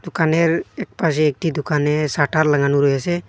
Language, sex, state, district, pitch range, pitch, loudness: Bengali, male, Assam, Hailakandi, 145-165 Hz, 155 Hz, -18 LUFS